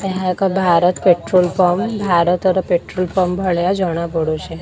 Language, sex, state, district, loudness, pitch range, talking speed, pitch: Odia, female, Odisha, Khordha, -16 LUFS, 175-185 Hz, 145 wpm, 180 Hz